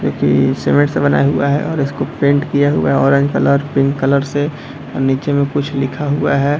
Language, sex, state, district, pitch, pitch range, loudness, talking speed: Hindi, male, Bihar, Darbhanga, 140 Hz, 135-145 Hz, -15 LUFS, 225 wpm